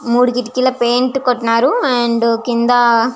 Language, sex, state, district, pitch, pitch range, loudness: Telugu, female, Andhra Pradesh, Visakhapatnam, 245 Hz, 235-250 Hz, -14 LUFS